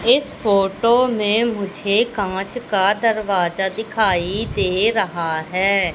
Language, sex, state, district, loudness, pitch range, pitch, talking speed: Hindi, female, Madhya Pradesh, Katni, -19 LUFS, 190-225 Hz, 200 Hz, 110 wpm